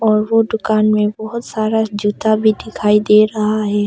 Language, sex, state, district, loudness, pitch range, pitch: Hindi, female, Arunachal Pradesh, Longding, -15 LUFS, 210-220 Hz, 215 Hz